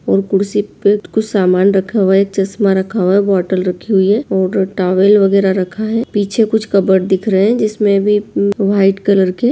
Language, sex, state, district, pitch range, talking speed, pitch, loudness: Hindi, female, Bihar, Gopalganj, 190-210 Hz, 210 wpm, 195 Hz, -13 LUFS